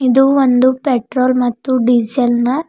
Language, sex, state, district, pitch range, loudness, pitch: Kannada, female, Karnataka, Bidar, 245-260 Hz, -14 LUFS, 255 Hz